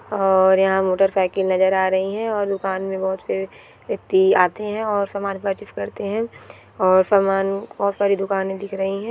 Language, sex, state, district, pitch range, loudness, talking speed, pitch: Hindi, female, Goa, North and South Goa, 190-200 Hz, -20 LUFS, 190 wpm, 195 Hz